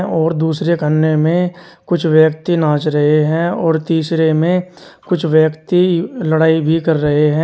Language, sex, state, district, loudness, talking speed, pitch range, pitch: Hindi, male, Uttar Pradesh, Shamli, -14 LUFS, 155 wpm, 155-170 Hz, 160 Hz